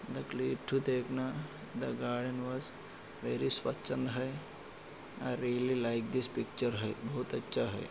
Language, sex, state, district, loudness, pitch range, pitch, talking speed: Hindi, male, Maharashtra, Aurangabad, -36 LUFS, 120-130 Hz, 125 Hz, 145 wpm